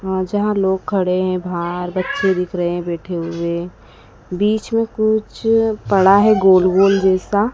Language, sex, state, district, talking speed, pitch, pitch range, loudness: Hindi, female, Madhya Pradesh, Dhar, 160 wpm, 190 Hz, 175-205 Hz, -17 LUFS